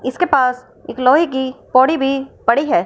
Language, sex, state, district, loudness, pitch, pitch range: Hindi, female, Punjab, Fazilka, -16 LUFS, 260 Hz, 255-275 Hz